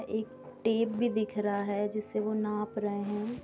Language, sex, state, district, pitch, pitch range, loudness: Hindi, female, Bihar, Gopalganj, 215 Hz, 210-220 Hz, -32 LUFS